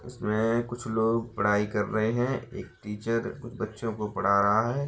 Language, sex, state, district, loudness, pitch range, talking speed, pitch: Hindi, male, Bihar, Bhagalpur, -28 LUFS, 105-120 Hz, 170 wpm, 110 Hz